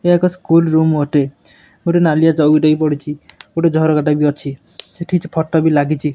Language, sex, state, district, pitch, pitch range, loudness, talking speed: Odia, male, Odisha, Nuapada, 155 Hz, 150-165 Hz, -15 LUFS, 195 wpm